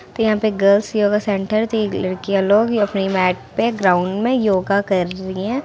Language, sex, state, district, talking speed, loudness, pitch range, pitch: Hindi, female, Bihar, Muzaffarpur, 190 wpm, -18 LUFS, 190-215 Hz, 200 Hz